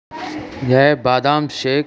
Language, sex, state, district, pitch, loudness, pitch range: Hindi, male, Uttar Pradesh, Jalaun, 140 Hz, -16 LUFS, 130-145 Hz